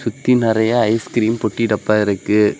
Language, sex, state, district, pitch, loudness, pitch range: Tamil, male, Tamil Nadu, Kanyakumari, 110 Hz, -17 LUFS, 105-115 Hz